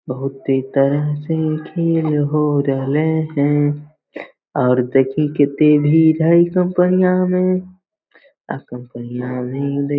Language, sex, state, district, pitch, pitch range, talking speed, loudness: Hindi, male, Bihar, Lakhisarai, 150 Hz, 135-165 Hz, 110 wpm, -17 LUFS